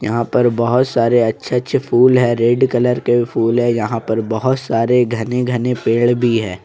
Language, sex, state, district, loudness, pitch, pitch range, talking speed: Hindi, male, Jharkhand, Ranchi, -15 LUFS, 120 Hz, 115-125 Hz, 180 wpm